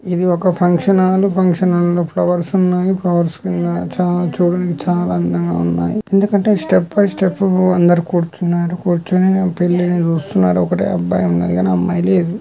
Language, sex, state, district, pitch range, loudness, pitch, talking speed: Telugu, male, Andhra Pradesh, Guntur, 165-185 Hz, -15 LUFS, 175 Hz, 145 wpm